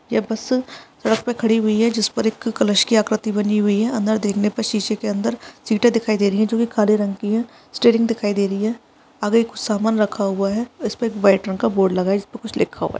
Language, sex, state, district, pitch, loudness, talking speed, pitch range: Hindi, female, Bihar, Saharsa, 220 Hz, -19 LUFS, 265 wpm, 205-230 Hz